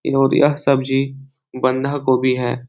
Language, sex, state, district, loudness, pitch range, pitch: Hindi, male, Bihar, Jahanabad, -18 LUFS, 130-140 Hz, 135 Hz